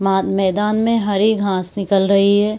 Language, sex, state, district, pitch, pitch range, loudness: Hindi, female, Bihar, Purnia, 200 Hz, 195-210 Hz, -16 LUFS